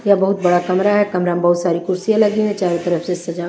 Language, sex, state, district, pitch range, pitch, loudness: Hindi, female, Bihar, Kaimur, 175-200 Hz, 180 Hz, -17 LUFS